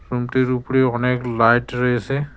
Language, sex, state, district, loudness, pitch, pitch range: Bengali, male, West Bengal, Cooch Behar, -19 LUFS, 125 Hz, 120-130 Hz